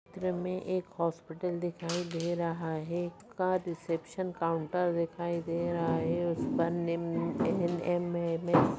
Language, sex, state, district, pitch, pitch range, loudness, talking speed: Hindi, male, Bihar, Muzaffarpur, 170 Hz, 165-175 Hz, -33 LUFS, 135 wpm